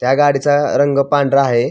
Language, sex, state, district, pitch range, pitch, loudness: Marathi, male, Maharashtra, Pune, 135-145 Hz, 140 Hz, -14 LUFS